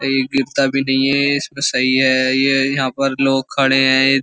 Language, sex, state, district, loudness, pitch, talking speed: Hindi, male, Uttar Pradesh, Jyotiba Phule Nagar, -15 LUFS, 135 Hz, 200 wpm